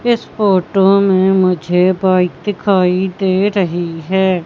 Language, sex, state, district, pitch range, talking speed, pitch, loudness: Hindi, female, Madhya Pradesh, Katni, 180-195 Hz, 120 wpm, 190 Hz, -14 LUFS